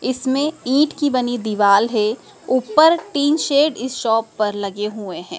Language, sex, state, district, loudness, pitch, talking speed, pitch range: Hindi, female, Madhya Pradesh, Dhar, -18 LUFS, 255 Hz, 165 wpm, 215-285 Hz